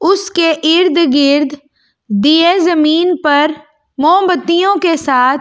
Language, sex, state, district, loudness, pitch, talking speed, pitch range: Hindi, female, Delhi, New Delhi, -11 LUFS, 315 Hz, 110 wpm, 290-350 Hz